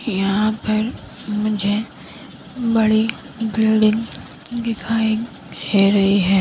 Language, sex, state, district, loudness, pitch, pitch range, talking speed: Hindi, female, Bihar, Kishanganj, -19 LUFS, 220 Hz, 205-225 Hz, 85 wpm